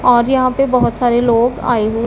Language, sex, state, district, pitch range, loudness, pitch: Hindi, female, Punjab, Pathankot, 235-255 Hz, -14 LUFS, 245 Hz